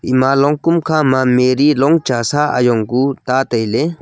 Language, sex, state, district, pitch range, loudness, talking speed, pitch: Wancho, male, Arunachal Pradesh, Longding, 125-150 Hz, -14 LUFS, 180 wpm, 135 Hz